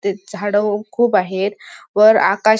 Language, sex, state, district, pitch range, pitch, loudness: Marathi, female, Maharashtra, Sindhudurg, 200-215 Hz, 205 Hz, -16 LUFS